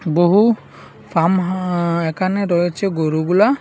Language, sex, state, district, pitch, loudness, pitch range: Bengali, male, Assam, Hailakandi, 175 Hz, -17 LUFS, 170-195 Hz